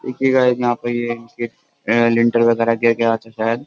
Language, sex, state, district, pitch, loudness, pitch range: Hindi, male, Uttar Pradesh, Jyotiba Phule Nagar, 115 Hz, -17 LUFS, 115-120 Hz